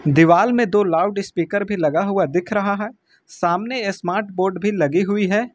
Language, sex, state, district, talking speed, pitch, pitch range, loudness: Hindi, male, Uttar Pradesh, Lucknow, 185 wpm, 200 Hz, 180-210 Hz, -19 LUFS